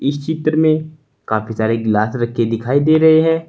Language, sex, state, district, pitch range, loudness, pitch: Hindi, male, Uttar Pradesh, Saharanpur, 115-155 Hz, -16 LUFS, 140 Hz